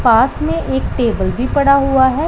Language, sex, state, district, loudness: Hindi, female, Punjab, Pathankot, -15 LUFS